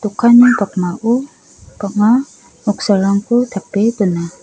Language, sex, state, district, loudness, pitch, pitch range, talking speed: Garo, female, Meghalaya, South Garo Hills, -14 LUFS, 205 Hz, 195-235 Hz, 80 wpm